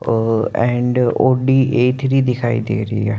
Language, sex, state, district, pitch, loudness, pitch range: Hindi, male, Chandigarh, Chandigarh, 120 Hz, -16 LUFS, 115-130 Hz